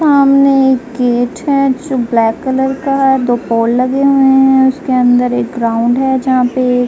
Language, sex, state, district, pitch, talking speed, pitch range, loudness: Hindi, female, Uttar Pradesh, Jalaun, 260 Hz, 190 wpm, 245-270 Hz, -12 LUFS